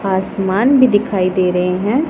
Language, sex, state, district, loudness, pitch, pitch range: Hindi, female, Punjab, Pathankot, -15 LUFS, 195 Hz, 185-230 Hz